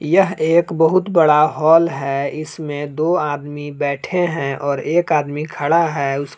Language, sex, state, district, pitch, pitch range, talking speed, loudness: Hindi, male, Jharkhand, Palamu, 155 Hz, 145-165 Hz, 150 wpm, -17 LUFS